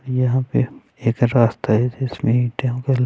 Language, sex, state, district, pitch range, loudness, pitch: Hindi, male, Chhattisgarh, Raipur, 120-130 Hz, -20 LUFS, 125 Hz